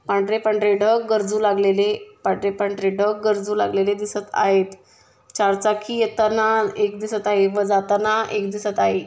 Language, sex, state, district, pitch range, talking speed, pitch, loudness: Marathi, female, Maharashtra, Solapur, 200-215 Hz, 140 wpm, 210 Hz, -20 LUFS